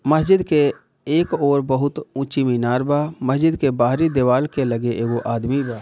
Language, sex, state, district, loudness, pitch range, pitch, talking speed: Bhojpuri, male, Bihar, Gopalganj, -19 LUFS, 125-150 Hz, 140 Hz, 195 wpm